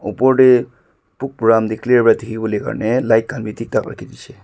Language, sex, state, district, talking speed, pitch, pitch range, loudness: Nagamese, male, Nagaland, Dimapur, 200 wpm, 115 Hz, 110-125 Hz, -16 LUFS